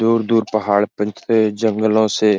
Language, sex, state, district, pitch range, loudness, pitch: Hindi, male, Bihar, Jahanabad, 105-110 Hz, -17 LUFS, 110 Hz